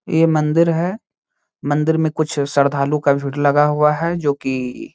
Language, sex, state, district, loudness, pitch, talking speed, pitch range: Hindi, male, Bihar, Saharsa, -17 LUFS, 150 Hz, 180 wpm, 140-160 Hz